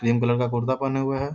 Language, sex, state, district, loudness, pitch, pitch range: Hindi, male, Bihar, Darbhanga, -24 LUFS, 130 Hz, 120-135 Hz